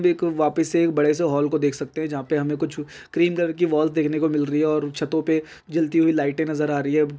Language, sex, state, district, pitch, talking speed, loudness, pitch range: Hindi, male, Bihar, Bhagalpur, 155 Hz, 285 wpm, -22 LUFS, 150-160 Hz